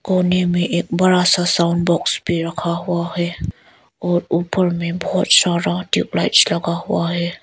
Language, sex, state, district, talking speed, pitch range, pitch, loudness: Hindi, female, Arunachal Pradesh, Lower Dibang Valley, 160 wpm, 170-180 Hz, 175 Hz, -17 LUFS